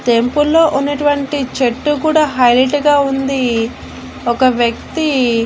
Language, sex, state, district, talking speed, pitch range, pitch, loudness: Telugu, female, Andhra Pradesh, Annamaya, 100 wpm, 245-290 Hz, 270 Hz, -14 LUFS